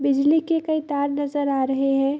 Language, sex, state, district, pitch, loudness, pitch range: Hindi, female, Bihar, Bhagalpur, 285 Hz, -22 LUFS, 275-305 Hz